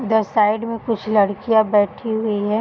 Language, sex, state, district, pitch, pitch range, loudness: Hindi, female, Uttar Pradesh, Varanasi, 220 Hz, 210-225 Hz, -19 LUFS